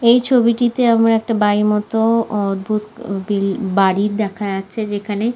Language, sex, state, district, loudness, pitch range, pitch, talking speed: Bengali, female, West Bengal, Malda, -17 LUFS, 200-230 Hz, 210 Hz, 135 wpm